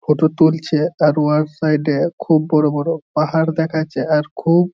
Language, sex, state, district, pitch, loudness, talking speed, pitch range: Bengali, male, West Bengal, Jhargram, 155 Hz, -17 LUFS, 165 wpm, 150-160 Hz